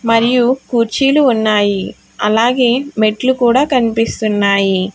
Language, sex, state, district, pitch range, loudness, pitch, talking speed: Telugu, female, Telangana, Hyderabad, 215-255 Hz, -13 LUFS, 230 Hz, 85 wpm